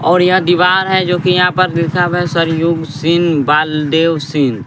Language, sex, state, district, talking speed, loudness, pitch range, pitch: Hindi, male, Bihar, West Champaran, 190 wpm, -13 LUFS, 155-180 Hz, 170 Hz